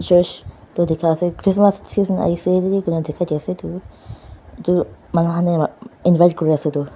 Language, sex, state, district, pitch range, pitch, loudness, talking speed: Nagamese, female, Nagaland, Dimapur, 150-180 Hz, 170 Hz, -18 LUFS, 120 wpm